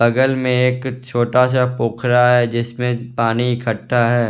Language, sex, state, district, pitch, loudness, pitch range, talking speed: Hindi, male, Bihar, West Champaran, 125 Hz, -17 LUFS, 120-125 Hz, 155 wpm